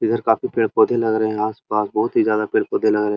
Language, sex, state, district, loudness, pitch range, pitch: Hindi, male, Uttar Pradesh, Muzaffarnagar, -19 LUFS, 105-110 Hz, 105 Hz